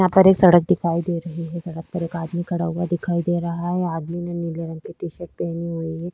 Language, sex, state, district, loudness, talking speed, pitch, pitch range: Hindi, female, Chhattisgarh, Sukma, -22 LUFS, 265 wpm, 170 Hz, 165-175 Hz